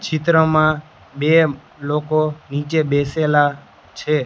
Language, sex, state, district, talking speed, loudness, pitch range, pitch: Gujarati, male, Gujarat, Gandhinagar, 85 wpm, -18 LUFS, 145-155 Hz, 155 Hz